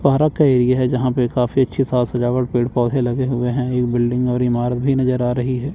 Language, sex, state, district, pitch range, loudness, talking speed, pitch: Hindi, male, Chandigarh, Chandigarh, 125-130 Hz, -18 LUFS, 250 wpm, 125 Hz